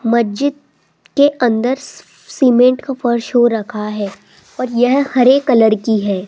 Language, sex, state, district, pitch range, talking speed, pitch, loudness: Hindi, female, Rajasthan, Jaipur, 220-260 Hz, 145 wpm, 245 Hz, -14 LUFS